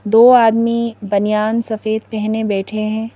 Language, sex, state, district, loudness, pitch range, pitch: Hindi, female, Madhya Pradesh, Bhopal, -15 LUFS, 215-230 Hz, 220 Hz